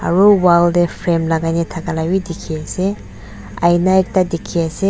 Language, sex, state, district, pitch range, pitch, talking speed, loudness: Nagamese, female, Nagaland, Dimapur, 165-185 Hz, 170 Hz, 170 wpm, -16 LUFS